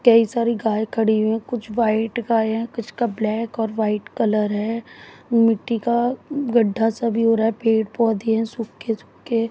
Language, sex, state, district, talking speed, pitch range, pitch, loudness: Hindi, female, Haryana, Jhajjar, 195 wpm, 220-235 Hz, 225 Hz, -21 LUFS